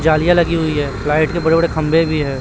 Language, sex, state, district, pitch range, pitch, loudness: Hindi, male, Chhattisgarh, Raipur, 150-165 Hz, 155 Hz, -15 LUFS